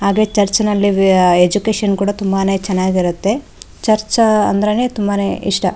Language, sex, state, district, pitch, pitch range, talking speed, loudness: Kannada, female, Karnataka, Raichur, 200 Hz, 195-215 Hz, 115 wpm, -15 LUFS